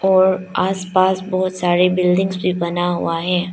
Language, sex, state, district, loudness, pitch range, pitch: Hindi, female, Arunachal Pradesh, Lower Dibang Valley, -18 LUFS, 180-185 Hz, 185 Hz